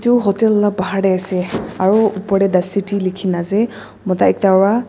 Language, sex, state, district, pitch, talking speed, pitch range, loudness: Nagamese, female, Nagaland, Dimapur, 195 Hz, 195 wpm, 185-210 Hz, -16 LUFS